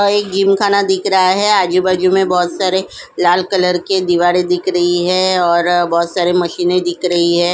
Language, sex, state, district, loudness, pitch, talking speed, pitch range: Hindi, female, Goa, North and South Goa, -14 LUFS, 180 Hz, 190 wpm, 175-190 Hz